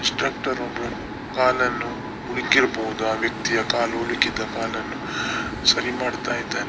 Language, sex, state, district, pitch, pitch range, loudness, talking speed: Kannada, male, Karnataka, Dakshina Kannada, 120 Hz, 110-125 Hz, -23 LUFS, 110 wpm